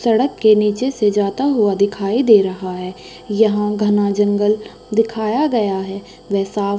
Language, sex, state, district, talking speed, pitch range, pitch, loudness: Hindi, female, Uttar Pradesh, Hamirpur, 170 wpm, 200-220 Hz, 210 Hz, -17 LUFS